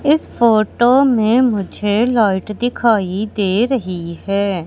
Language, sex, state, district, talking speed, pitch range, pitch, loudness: Hindi, male, Madhya Pradesh, Katni, 115 wpm, 200-240 Hz, 215 Hz, -16 LUFS